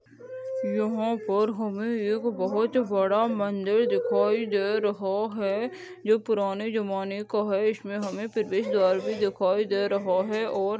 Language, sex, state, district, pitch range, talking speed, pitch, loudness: Hindi, female, Goa, North and South Goa, 200-225 Hz, 150 wpm, 210 Hz, -26 LUFS